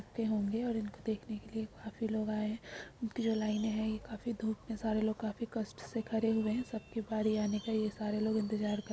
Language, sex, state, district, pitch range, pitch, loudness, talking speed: Magahi, female, Bihar, Gaya, 215-225 Hz, 220 Hz, -36 LUFS, 235 wpm